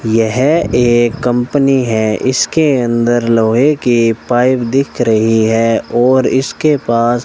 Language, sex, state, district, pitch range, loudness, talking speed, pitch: Hindi, male, Rajasthan, Bikaner, 115-130 Hz, -12 LUFS, 130 wpm, 120 Hz